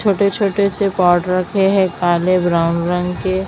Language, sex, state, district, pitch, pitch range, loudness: Hindi, female, Maharashtra, Mumbai Suburban, 185 Hz, 175-200 Hz, -16 LUFS